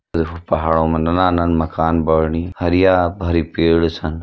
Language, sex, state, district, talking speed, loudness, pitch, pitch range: Hindi, male, Uttarakhand, Uttarkashi, 130 wpm, -17 LUFS, 85 Hz, 80-85 Hz